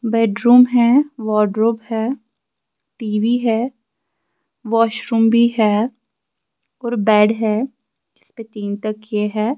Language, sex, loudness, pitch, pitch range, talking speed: Urdu, female, -17 LUFS, 225 Hz, 215-235 Hz, 105 wpm